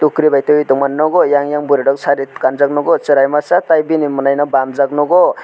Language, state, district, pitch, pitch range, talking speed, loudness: Kokborok, Tripura, West Tripura, 145 Hz, 140-150 Hz, 210 wpm, -13 LUFS